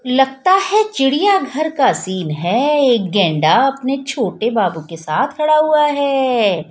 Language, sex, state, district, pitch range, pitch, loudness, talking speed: Hindi, female, Bihar, Patna, 200-295 Hz, 270 Hz, -15 LUFS, 150 wpm